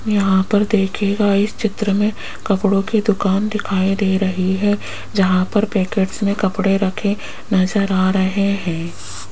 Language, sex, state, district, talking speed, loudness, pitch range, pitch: Hindi, female, Rajasthan, Jaipur, 150 wpm, -18 LUFS, 190-205 Hz, 200 Hz